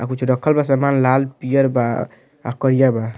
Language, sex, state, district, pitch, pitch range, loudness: Bhojpuri, male, Bihar, Muzaffarpur, 130 Hz, 125-135 Hz, -17 LUFS